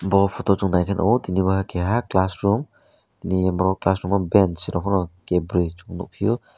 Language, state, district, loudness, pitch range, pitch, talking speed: Kokborok, Tripura, West Tripura, -21 LUFS, 90-100 Hz, 95 Hz, 190 wpm